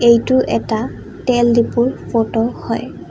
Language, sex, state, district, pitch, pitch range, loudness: Assamese, female, Assam, Kamrup Metropolitan, 235 Hz, 235-245 Hz, -17 LUFS